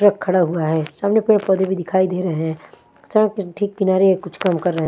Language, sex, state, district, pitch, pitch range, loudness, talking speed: Hindi, female, Punjab, Fazilka, 185 Hz, 175-200 Hz, -18 LUFS, 260 wpm